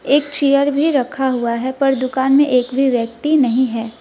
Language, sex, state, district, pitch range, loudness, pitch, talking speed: Hindi, female, West Bengal, Alipurduar, 250-280 Hz, -16 LUFS, 265 Hz, 210 wpm